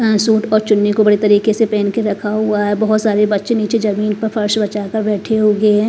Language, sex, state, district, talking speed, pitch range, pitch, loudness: Hindi, female, Punjab, Kapurthala, 255 wpm, 210-220 Hz, 210 Hz, -15 LUFS